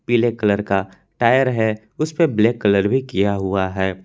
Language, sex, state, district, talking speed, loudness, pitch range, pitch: Hindi, male, Jharkhand, Palamu, 195 wpm, -19 LUFS, 95-120 Hz, 105 Hz